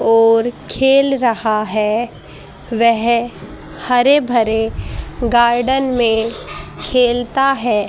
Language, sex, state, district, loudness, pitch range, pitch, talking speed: Hindi, female, Haryana, Charkhi Dadri, -15 LUFS, 225-250 Hz, 235 Hz, 85 wpm